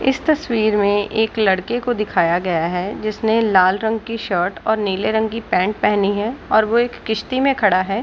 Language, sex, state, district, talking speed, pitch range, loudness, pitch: Hindi, female, Bihar, Gaya, 215 wpm, 195-225 Hz, -18 LUFS, 215 Hz